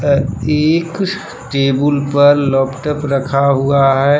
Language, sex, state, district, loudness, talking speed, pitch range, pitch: Hindi, male, Jharkhand, Palamu, -14 LUFS, 115 wpm, 135-150 Hz, 140 Hz